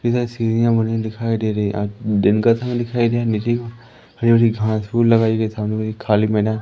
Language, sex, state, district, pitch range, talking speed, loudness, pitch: Hindi, male, Madhya Pradesh, Umaria, 110-115 Hz, 235 wpm, -18 LUFS, 115 Hz